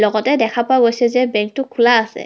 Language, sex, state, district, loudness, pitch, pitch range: Assamese, female, Assam, Kamrup Metropolitan, -15 LUFS, 240 Hz, 220-255 Hz